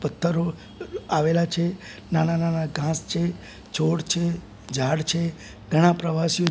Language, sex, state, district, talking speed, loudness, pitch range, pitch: Gujarati, male, Gujarat, Gandhinagar, 120 wpm, -24 LUFS, 160-170 Hz, 165 Hz